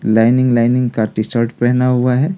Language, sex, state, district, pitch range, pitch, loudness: Hindi, male, Delhi, New Delhi, 115-125 Hz, 120 Hz, -14 LUFS